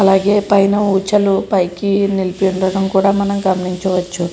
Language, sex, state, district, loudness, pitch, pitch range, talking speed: Telugu, female, Andhra Pradesh, Srikakulam, -15 LUFS, 195 Hz, 185-200 Hz, 125 wpm